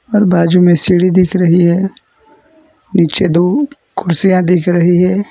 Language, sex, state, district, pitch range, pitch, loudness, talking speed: Hindi, male, Gujarat, Valsad, 175-195 Hz, 180 Hz, -11 LUFS, 145 wpm